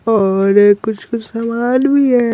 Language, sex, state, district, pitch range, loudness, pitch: Hindi, male, Bihar, Patna, 205-240 Hz, -14 LUFS, 230 Hz